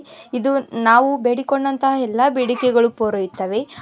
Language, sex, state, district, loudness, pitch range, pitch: Kannada, female, Karnataka, Koppal, -18 LUFS, 230-275 Hz, 250 Hz